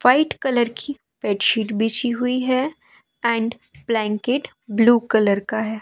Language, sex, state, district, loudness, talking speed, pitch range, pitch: Hindi, female, Madhya Pradesh, Katni, -21 LUFS, 145 wpm, 220-255 Hz, 235 Hz